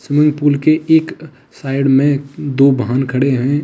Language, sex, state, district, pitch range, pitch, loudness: Hindi, male, Uttar Pradesh, Lalitpur, 135-150 Hz, 140 Hz, -14 LUFS